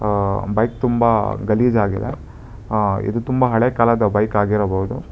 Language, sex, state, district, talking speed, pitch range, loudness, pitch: Kannada, male, Karnataka, Bangalore, 140 wpm, 105-115 Hz, -18 LUFS, 110 Hz